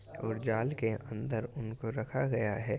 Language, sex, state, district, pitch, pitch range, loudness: Hindi, male, Uttar Pradesh, Jyotiba Phule Nagar, 115 Hz, 110-130 Hz, -35 LUFS